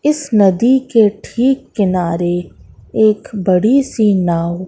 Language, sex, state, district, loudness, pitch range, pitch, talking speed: Hindi, female, Madhya Pradesh, Katni, -14 LUFS, 180-250 Hz, 210 Hz, 115 wpm